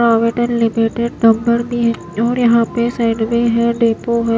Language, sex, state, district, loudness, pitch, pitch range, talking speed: Hindi, female, Himachal Pradesh, Shimla, -15 LUFS, 235 Hz, 230-235 Hz, 110 wpm